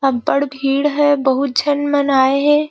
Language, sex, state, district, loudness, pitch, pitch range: Chhattisgarhi, female, Chhattisgarh, Rajnandgaon, -16 LUFS, 280 Hz, 270-290 Hz